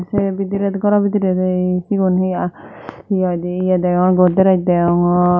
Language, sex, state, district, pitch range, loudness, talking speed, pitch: Chakma, female, Tripura, Dhalai, 180-195 Hz, -16 LUFS, 145 wpm, 185 Hz